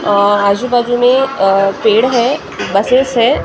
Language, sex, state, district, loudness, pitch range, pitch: Hindi, female, Maharashtra, Gondia, -12 LUFS, 200-255 Hz, 240 Hz